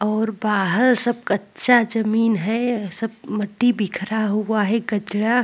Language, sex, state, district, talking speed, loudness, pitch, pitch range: Hindi, female, Uttar Pradesh, Jalaun, 145 wpm, -20 LUFS, 220 Hz, 210-230 Hz